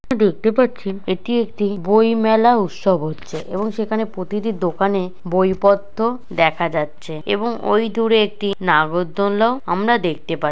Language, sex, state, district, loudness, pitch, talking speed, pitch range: Bengali, female, West Bengal, Purulia, -18 LUFS, 200 Hz, 135 wpm, 180-220 Hz